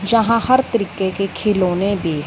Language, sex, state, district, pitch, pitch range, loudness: Hindi, female, Punjab, Fazilka, 200 Hz, 190-230 Hz, -17 LUFS